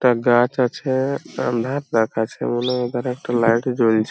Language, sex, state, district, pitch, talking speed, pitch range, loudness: Bengali, male, West Bengal, Purulia, 120 Hz, 130 wpm, 115-125 Hz, -20 LUFS